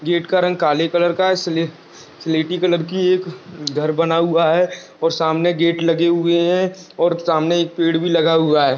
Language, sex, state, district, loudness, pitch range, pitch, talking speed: Hindi, male, Goa, North and South Goa, -17 LUFS, 165-175 Hz, 170 Hz, 205 wpm